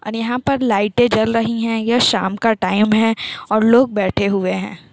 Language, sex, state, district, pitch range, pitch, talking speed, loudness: Hindi, female, Uttar Pradesh, Jalaun, 200-235 Hz, 225 Hz, 205 wpm, -16 LUFS